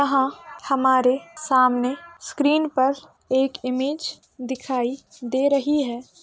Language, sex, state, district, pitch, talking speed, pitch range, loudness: Hindi, female, Bihar, Saharsa, 265 Hz, 105 wpm, 255-285 Hz, -22 LUFS